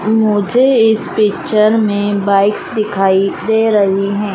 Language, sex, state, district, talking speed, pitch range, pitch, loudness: Hindi, female, Madhya Pradesh, Dhar, 125 wpm, 200-220 Hz, 210 Hz, -13 LUFS